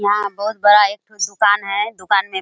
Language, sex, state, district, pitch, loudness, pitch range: Hindi, female, Bihar, Kishanganj, 205 Hz, -16 LUFS, 200-210 Hz